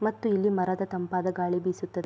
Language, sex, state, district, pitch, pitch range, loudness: Kannada, female, Karnataka, Mysore, 185 Hz, 180-195 Hz, -28 LUFS